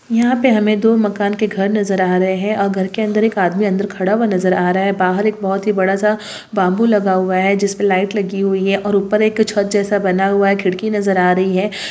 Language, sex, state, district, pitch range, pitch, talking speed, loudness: Hindi, female, Maharashtra, Chandrapur, 190-210 Hz, 200 Hz, 260 wpm, -16 LUFS